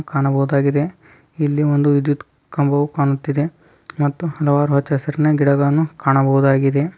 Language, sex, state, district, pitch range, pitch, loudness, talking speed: Kannada, male, Karnataka, Dharwad, 140-150 Hz, 145 Hz, -17 LUFS, 95 wpm